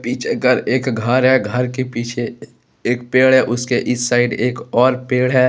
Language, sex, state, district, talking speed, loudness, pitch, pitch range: Hindi, male, Jharkhand, Deoghar, 175 wpm, -17 LUFS, 125 Hz, 120-130 Hz